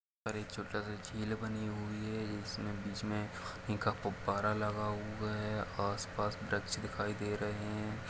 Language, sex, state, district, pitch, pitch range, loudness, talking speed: Hindi, male, Chhattisgarh, Kabirdham, 105 Hz, 100-105 Hz, -39 LUFS, 180 wpm